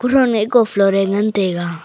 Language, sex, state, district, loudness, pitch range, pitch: Wancho, male, Arunachal Pradesh, Longding, -16 LUFS, 195-230 Hz, 205 Hz